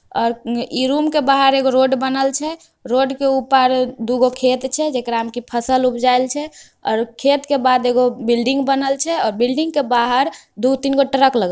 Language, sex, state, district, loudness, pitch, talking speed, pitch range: Angika, female, Bihar, Begusarai, -17 LUFS, 260 Hz, 195 wpm, 245-275 Hz